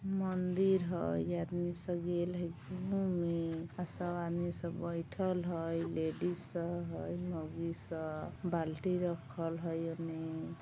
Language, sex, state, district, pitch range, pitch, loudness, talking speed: Maithili, female, Bihar, Vaishali, 165-180 Hz, 170 Hz, -37 LUFS, 120 wpm